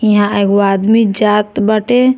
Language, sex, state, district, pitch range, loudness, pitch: Bhojpuri, female, Bihar, Muzaffarpur, 205-220 Hz, -12 LUFS, 210 Hz